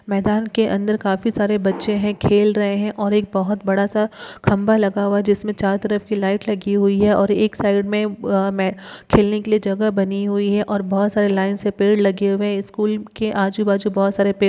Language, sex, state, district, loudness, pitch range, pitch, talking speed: Hindi, female, Uttar Pradesh, Gorakhpur, -19 LUFS, 200-210 Hz, 205 Hz, 235 wpm